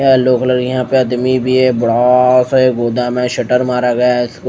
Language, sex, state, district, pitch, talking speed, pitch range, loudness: Hindi, male, Odisha, Nuapada, 125 Hz, 225 wpm, 125-130 Hz, -13 LUFS